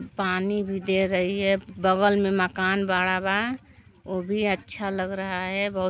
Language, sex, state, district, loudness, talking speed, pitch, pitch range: Bhojpuri, female, Uttar Pradesh, Gorakhpur, -25 LUFS, 185 wpm, 190 Hz, 185-200 Hz